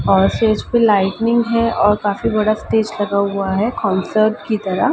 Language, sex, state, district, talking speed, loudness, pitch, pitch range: Hindi, female, Uttar Pradesh, Ghazipur, 180 wpm, -16 LUFS, 210 Hz, 200-220 Hz